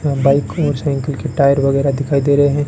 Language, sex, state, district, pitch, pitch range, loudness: Hindi, male, Rajasthan, Bikaner, 140 Hz, 140-145 Hz, -16 LUFS